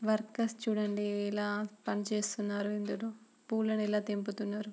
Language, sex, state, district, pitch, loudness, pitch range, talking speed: Telugu, female, Andhra Pradesh, Srikakulam, 210 Hz, -35 LUFS, 205-220 Hz, 125 wpm